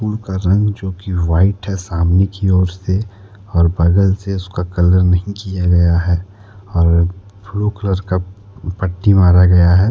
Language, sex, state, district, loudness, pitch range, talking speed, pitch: Hindi, male, Jharkhand, Deoghar, -15 LUFS, 90-100 Hz, 170 wpm, 95 Hz